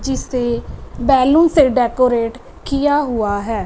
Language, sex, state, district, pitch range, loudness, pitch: Hindi, female, Punjab, Fazilka, 235-275 Hz, -16 LUFS, 255 Hz